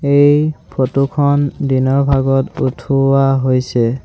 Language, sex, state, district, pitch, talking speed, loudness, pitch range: Assamese, male, Assam, Sonitpur, 135 Hz, 105 wpm, -14 LUFS, 130-140 Hz